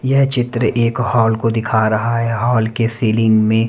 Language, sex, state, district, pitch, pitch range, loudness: Hindi, male, Chhattisgarh, Raipur, 115 Hz, 110-120 Hz, -16 LUFS